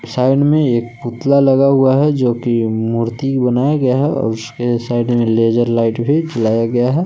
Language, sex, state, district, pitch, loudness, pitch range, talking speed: Hindi, male, Jharkhand, Palamu, 120 Hz, -15 LUFS, 115-135 Hz, 195 wpm